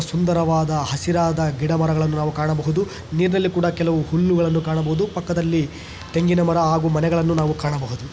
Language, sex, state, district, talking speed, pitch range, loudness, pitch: Kannada, male, Karnataka, Chamarajanagar, 135 wpm, 155-170 Hz, -20 LUFS, 165 Hz